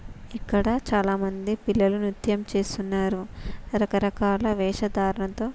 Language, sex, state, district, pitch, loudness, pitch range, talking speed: Telugu, female, Telangana, Nalgonda, 205 Hz, -25 LUFS, 195-210 Hz, 110 wpm